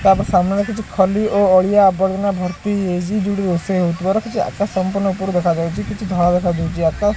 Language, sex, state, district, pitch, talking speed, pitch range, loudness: Odia, male, Odisha, Khordha, 190 Hz, 190 wpm, 180-200 Hz, -17 LUFS